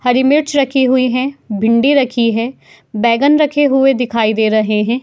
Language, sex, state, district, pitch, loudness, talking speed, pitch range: Hindi, female, Uttar Pradesh, Muzaffarnagar, 250 Hz, -13 LUFS, 180 wpm, 230-275 Hz